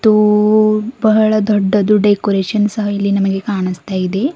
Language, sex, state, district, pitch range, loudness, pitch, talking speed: Kannada, female, Karnataka, Bidar, 195-215 Hz, -14 LUFS, 210 Hz, 125 wpm